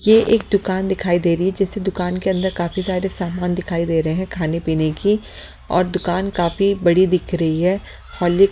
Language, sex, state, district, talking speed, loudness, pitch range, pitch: Hindi, female, Delhi, New Delhi, 210 wpm, -19 LUFS, 175-190 Hz, 185 Hz